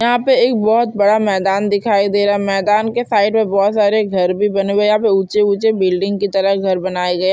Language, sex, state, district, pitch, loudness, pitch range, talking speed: Hindi, female, Chhattisgarh, Bilaspur, 205 Hz, -15 LUFS, 195-215 Hz, 260 wpm